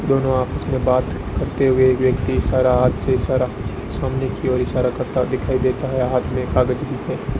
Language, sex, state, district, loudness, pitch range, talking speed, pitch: Hindi, female, Rajasthan, Bikaner, -20 LUFS, 125-130 Hz, 210 wpm, 130 Hz